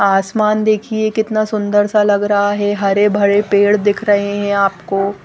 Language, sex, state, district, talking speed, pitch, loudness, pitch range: Hindi, female, Odisha, Nuapada, 160 wpm, 205 Hz, -14 LUFS, 200-210 Hz